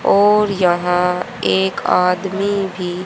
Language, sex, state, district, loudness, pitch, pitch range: Hindi, male, Haryana, Rohtak, -16 LUFS, 180 Hz, 180-200 Hz